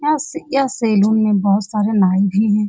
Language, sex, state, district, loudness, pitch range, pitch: Hindi, female, Bihar, Saran, -16 LUFS, 200-265 Hz, 210 Hz